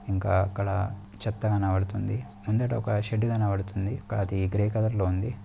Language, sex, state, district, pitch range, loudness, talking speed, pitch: Telugu, male, Andhra Pradesh, Guntur, 100-110 Hz, -28 LUFS, 130 wpm, 105 Hz